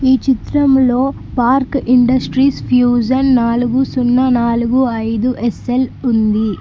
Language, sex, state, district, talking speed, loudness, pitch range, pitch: Telugu, female, Telangana, Mahabubabad, 110 wpm, -14 LUFS, 240-260 Hz, 250 Hz